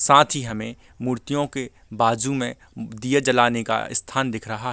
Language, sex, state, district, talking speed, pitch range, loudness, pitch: Hindi, male, Chhattisgarh, Bilaspur, 180 wpm, 115-135 Hz, -22 LUFS, 120 Hz